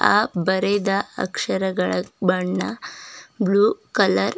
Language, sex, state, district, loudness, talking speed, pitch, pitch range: Kannada, female, Karnataka, Bidar, -21 LUFS, 95 wpm, 190 Hz, 180-200 Hz